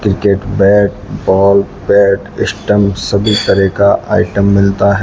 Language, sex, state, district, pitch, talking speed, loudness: Hindi, male, Rajasthan, Bikaner, 100 Hz, 120 wpm, -11 LUFS